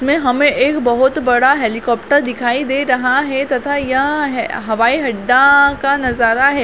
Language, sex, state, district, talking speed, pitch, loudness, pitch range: Hindi, female, Chhattisgarh, Bilaspur, 160 wpm, 265 Hz, -14 LUFS, 245-280 Hz